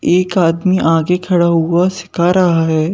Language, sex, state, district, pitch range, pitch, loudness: Hindi, male, Madhya Pradesh, Bhopal, 165-180 Hz, 175 Hz, -13 LUFS